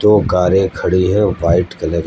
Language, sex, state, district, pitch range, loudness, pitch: Hindi, male, Uttar Pradesh, Lucknow, 85-100 Hz, -14 LUFS, 90 Hz